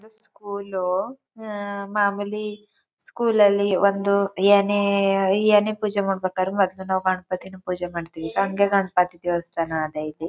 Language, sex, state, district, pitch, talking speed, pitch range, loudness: Kannada, female, Karnataka, Chamarajanagar, 200 Hz, 95 wpm, 185-205 Hz, -22 LUFS